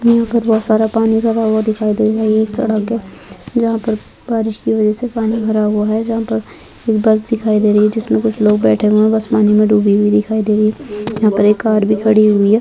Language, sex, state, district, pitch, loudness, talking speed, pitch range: Hindi, female, Rajasthan, Churu, 220 Hz, -14 LUFS, 260 wpm, 210-225 Hz